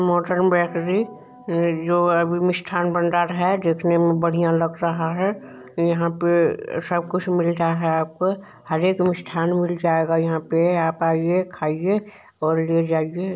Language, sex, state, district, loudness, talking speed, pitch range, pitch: Maithili, male, Bihar, Supaul, -21 LUFS, 150 wpm, 165-180 Hz, 170 Hz